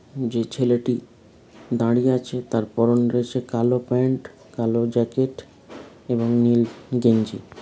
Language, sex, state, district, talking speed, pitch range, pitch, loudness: Bengali, male, West Bengal, Kolkata, 110 wpm, 115-125 Hz, 120 Hz, -22 LUFS